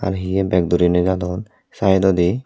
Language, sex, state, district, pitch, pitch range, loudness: Chakma, male, Tripura, Dhalai, 95 Hz, 90-95 Hz, -18 LUFS